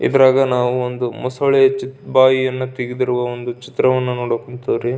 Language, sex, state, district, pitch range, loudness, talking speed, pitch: Kannada, male, Karnataka, Belgaum, 125-130 Hz, -17 LUFS, 110 wpm, 125 Hz